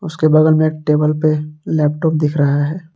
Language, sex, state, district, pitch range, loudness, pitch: Hindi, male, Jharkhand, Palamu, 150-155 Hz, -15 LUFS, 155 Hz